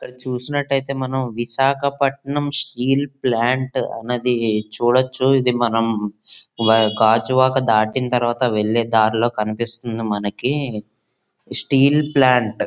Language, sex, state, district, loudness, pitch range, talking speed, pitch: Telugu, male, Andhra Pradesh, Visakhapatnam, -18 LUFS, 110-135 Hz, 100 wpm, 125 Hz